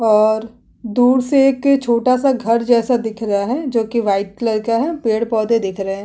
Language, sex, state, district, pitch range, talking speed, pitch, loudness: Hindi, female, Uttarakhand, Tehri Garhwal, 220-250 Hz, 220 wpm, 230 Hz, -16 LUFS